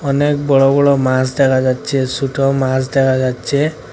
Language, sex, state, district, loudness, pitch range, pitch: Bengali, male, Assam, Hailakandi, -15 LUFS, 130-140 Hz, 135 Hz